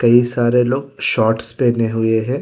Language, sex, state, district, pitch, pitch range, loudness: Hindi, female, Telangana, Hyderabad, 120 Hz, 115-125 Hz, -16 LUFS